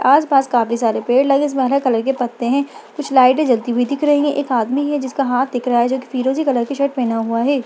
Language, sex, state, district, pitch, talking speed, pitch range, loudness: Hindi, female, Bihar, Bhagalpur, 260 Hz, 280 wpm, 245-280 Hz, -17 LUFS